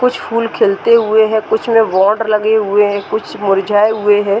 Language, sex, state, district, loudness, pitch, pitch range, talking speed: Hindi, female, Bihar, Gaya, -13 LUFS, 215 Hz, 205-220 Hz, 190 wpm